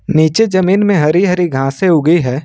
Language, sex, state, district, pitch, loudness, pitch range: Hindi, male, Jharkhand, Ranchi, 175 Hz, -12 LUFS, 155-190 Hz